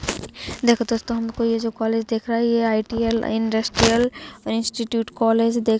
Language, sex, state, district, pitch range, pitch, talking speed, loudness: Hindi, female, Bihar, Gopalganj, 225-235 Hz, 230 Hz, 165 wpm, -21 LUFS